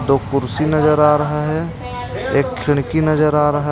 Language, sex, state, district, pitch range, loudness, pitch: Hindi, male, Jharkhand, Ranchi, 135-150 Hz, -17 LUFS, 150 Hz